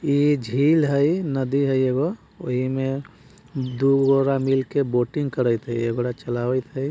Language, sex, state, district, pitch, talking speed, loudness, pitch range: Bajjika, male, Bihar, Vaishali, 135 Hz, 120 wpm, -22 LUFS, 125-140 Hz